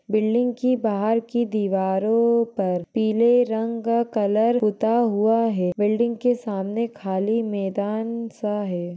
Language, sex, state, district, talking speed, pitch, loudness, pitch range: Hindi, female, Chhattisgarh, Balrampur, 125 wpm, 220 Hz, -22 LUFS, 205-235 Hz